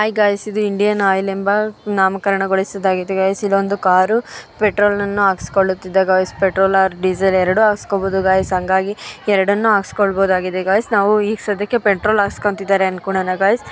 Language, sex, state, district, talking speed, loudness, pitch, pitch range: Kannada, female, Karnataka, Dharwad, 125 wpm, -16 LUFS, 195 Hz, 190-205 Hz